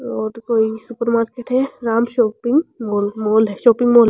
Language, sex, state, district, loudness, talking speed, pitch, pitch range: Rajasthani, female, Rajasthan, Churu, -18 LUFS, 190 wpm, 230 Hz, 220-240 Hz